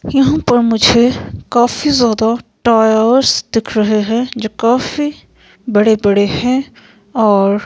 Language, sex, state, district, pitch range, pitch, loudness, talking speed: Hindi, female, Himachal Pradesh, Shimla, 215-245 Hz, 230 Hz, -13 LUFS, 115 wpm